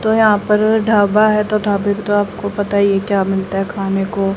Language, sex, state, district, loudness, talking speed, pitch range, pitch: Hindi, female, Haryana, Jhajjar, -15 LUFS, 190 wpm, 195-210 Hz, 205 Hz